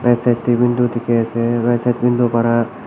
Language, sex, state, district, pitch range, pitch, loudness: Nagamese, male, Nagaland, Kohima, 115-120 Hz, 120 Hz, -16 LUFS